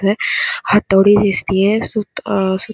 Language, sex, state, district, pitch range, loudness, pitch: Marathi, female, Maharashtra, Solapur, 195-215 Hz, -15 LUFS, 205 Hz